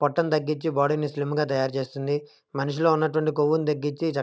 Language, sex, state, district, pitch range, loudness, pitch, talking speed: Telugu, male, Andhra Pradesh, Krishna, 145-155 Hz, -25 LUFS, 150 Hz, 170 wpm